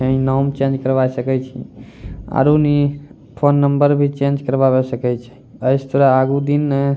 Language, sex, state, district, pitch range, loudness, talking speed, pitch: Angika, male, Bihar, Bhagalpur, 130-140 Hz, -16 LUFS, 170 wpm, 135 Hz